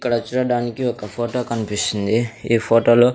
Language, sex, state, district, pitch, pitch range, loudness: Telugu, male, Andhra Pradesh, Sri Satya Sai, 115 Hz, 115-120 Hz, -20 LUFS